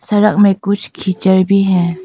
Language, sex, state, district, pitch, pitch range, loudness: Hindi, female, Arunachal Pradesh, Papum Pare, 195 Hz, 185-205 Hz, -12 LUFS